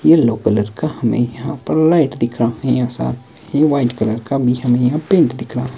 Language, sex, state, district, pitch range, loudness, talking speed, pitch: Hindi, male, Himachal Pradesh, Shimla, 115-145 Hz, -16 LUFS, 240 wpm, 125 Hz